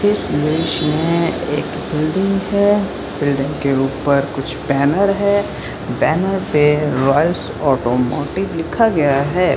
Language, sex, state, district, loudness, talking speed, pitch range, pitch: Hindi, male, Bihar, Saran, -17 LUFS, 120 wpm, 140-195 Hz, 155 Hz